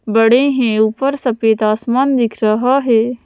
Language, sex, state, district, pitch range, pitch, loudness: Hindi, female, Madhya Pradesh, Bhopal, 220-260 Hz, 235 Hz, -14 LUFS